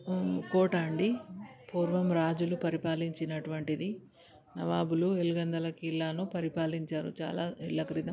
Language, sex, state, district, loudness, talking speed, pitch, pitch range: Telugu, female, Telangana, Karimnagar, -33 LUFS, 90 wpm, 165 Hz, 160-180 Hz